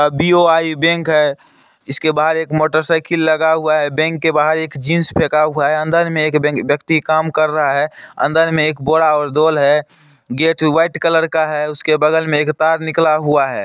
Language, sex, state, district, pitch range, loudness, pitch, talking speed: Hindi, male, Bihar, Supaul, 150-160 Hz, -14 LUFS, 155 Hz, 200 wpm